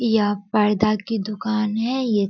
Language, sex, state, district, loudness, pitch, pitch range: Hindi, female, Bihar, Sitamarhi, -21 LUFS, 215 Hz, 210-225 Hz